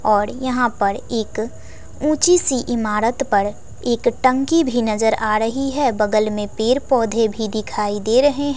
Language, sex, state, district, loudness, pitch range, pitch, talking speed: Hindi, female, Bihar, West Champaran, -19 LUFS, 215-260 Hz, 230 Hz, 170 wpm